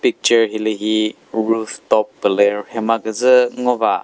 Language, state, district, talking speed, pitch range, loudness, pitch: Chakhesang, Nagaland, Dimapur, 150 wpm, 110-120 Hz, -17 LUFS, 110 Hz